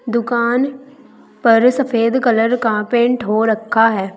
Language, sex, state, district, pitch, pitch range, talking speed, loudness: Hindi, female, Uttar Pradesh, Saharanpur, 235 Hz, 225-250 Hz, 130 wpm, -15 LUFS